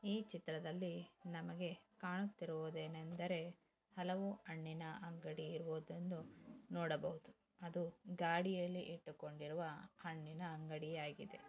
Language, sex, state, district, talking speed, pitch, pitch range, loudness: Kannada, female, Karnataka, Dharwad, 75 wpm, 170 Hz, 160-180 Hz, -47 LUFS